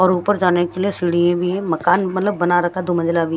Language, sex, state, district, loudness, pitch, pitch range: Hindi, male, Bihar, West Champaran, -18 LUFS, 175 Hz, 175-185 Hz